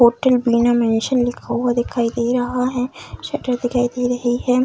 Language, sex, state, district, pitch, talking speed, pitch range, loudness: Hindi, female, Bihar, Darbhanga, 245 Hz, 180 wpm, 240-250 Hz, -19 LUFS